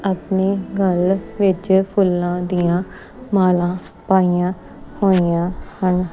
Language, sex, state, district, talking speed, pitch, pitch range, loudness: Punjabi, female, Punjab, Kapurthala, 90 wpm, 185 Hz, 180-195 Hz, -18 LUFS